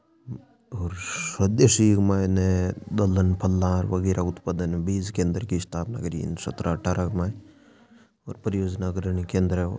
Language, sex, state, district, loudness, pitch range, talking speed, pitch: Marwari, male, Rajasthan, Nagaur, -25 LUFS, 90-105 Hz, 145 wpm, 95 Hz